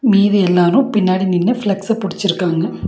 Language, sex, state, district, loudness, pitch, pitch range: Tamil, female, Tamil Nadu, Nilgiris, -15 LUFS, 195 Hz, 180-210 Hz